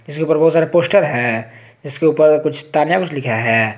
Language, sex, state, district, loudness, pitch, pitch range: Hindi, male, Jharkhand, Garhwa, -15 LUFS, 150 Hz, 115-160 Hz